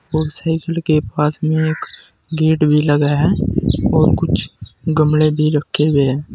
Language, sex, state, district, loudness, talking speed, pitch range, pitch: Hindi, male, Uttar Pradesh, Saharanpur, -16 LUFS, 140 wpm, 150-160 Hz, 155 Hz